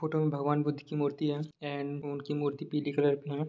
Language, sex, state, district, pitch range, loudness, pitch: Hindi, male, Bihar, Sitamarhi, 145-150 Hz, -33 LUFS, 145 Hz